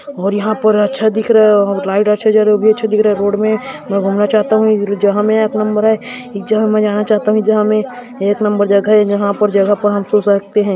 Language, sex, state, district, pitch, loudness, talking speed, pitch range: Hindi, male, Chhattisgarh, Kabirdham, 210 Hz, -13 LUFS, 260 wpm, 205-215 Hz